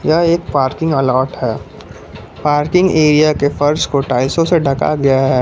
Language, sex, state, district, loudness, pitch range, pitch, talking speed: Hindi, male, Jharkhand, Palamu, -14 LUFS, 135-160 Hz, 145 Hz, 165 wpm